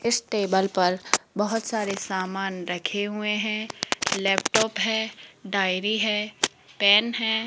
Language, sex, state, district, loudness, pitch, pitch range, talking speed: Hindi, female, Rajasthan, Jaipur, -24 LUFS, 210 Hz, 195-220 Hz, 120 wpm